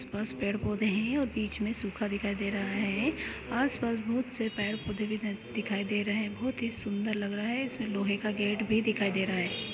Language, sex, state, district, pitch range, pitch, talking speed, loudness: Hindi, male, West Bengal, Jalpaiguri, 205-225 Hz, 210 Hz, 235 wpm, -32 LUFS